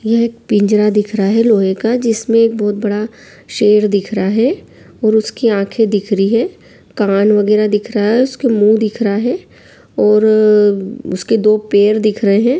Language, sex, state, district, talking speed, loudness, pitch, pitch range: Hindi, female, Bihar, Saran, 185 wpm, -13 LUFS, 215 Hz, 205-230 Hz